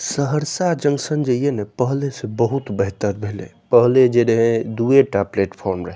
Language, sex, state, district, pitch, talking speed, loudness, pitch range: Maithili, male, Bihar, Saharsa, 120 Hz, 170 wpm, -19 LUFS, 100-140 Hz